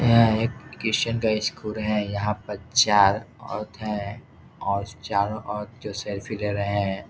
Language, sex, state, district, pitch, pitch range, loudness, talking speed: Hindi, male, Bihar, Jahanabad, 105 Hz, 100-110 Hz, -25 LUFS, 160 wpm